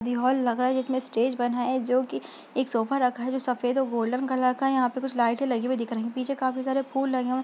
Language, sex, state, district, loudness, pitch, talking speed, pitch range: Hindi, female, Uttar Pradesh, Budaun, -26 LUFS, 255 Hz, 280 wpm, 245-260 Hz